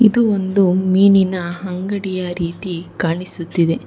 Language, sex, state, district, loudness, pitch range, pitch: Kannada, female, Karnataka, Bangalore, -17 LUFS, 175-195 Hz, 185 Hz